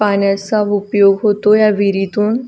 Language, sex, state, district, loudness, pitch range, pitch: Marathi, female, Maharashtra, Solapur, -13 LUFS, 200-210 Hz, 205 Hz